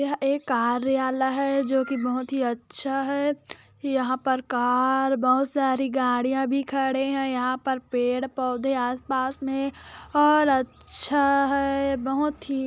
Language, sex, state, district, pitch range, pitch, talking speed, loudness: Hindi, female, Chhattisgarh, Korba, 255-275 Hz, 265 Hz, 135 wpm, -24 LUFS